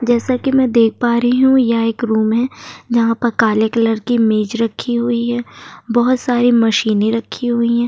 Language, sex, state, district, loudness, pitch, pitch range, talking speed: Hindi, female, Uttar Pradesh, Jyotiba Phule Nagar, -15 LUFS, 235 Hz, 225-240 Hz, 200 wpm